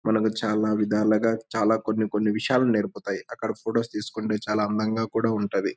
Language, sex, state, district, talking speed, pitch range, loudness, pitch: Telugu, male, Andhra Pradesh, Anantapur, 145 wpm, 105-110 Hz, -25 LUFS, 110 Hz